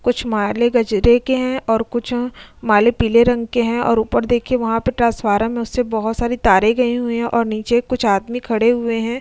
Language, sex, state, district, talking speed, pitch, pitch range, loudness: Hindi, female, Uttar Pradesh, Jyotiba Phule Nagar, 215 wpm, 235 Hz, 225-245 Hz, -17 LUFS